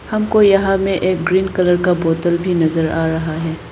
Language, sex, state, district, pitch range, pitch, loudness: Hindi, female, Arunachal Pradesh, Lower Dibang Valley, 165-190 Hz, 175 Hz, -16 LUFS